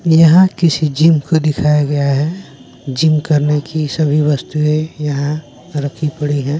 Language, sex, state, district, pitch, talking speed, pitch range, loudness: Hindi, male, Bihar, West Champaran, 150 Hz, 145 wpm, 145-155 Hz, -14 LUFS